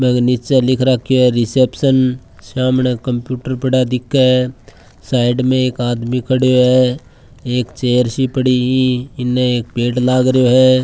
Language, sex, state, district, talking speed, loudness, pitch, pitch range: Marwari, male, Rajasthan, Churu, 150 wpm, -15 LUFS, 125 Hz, 125-130 Hz